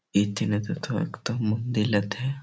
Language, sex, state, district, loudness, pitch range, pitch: Bengali, male, West Bengal, Malda, -27 LUFS, 105-120 Hz, 105 Hz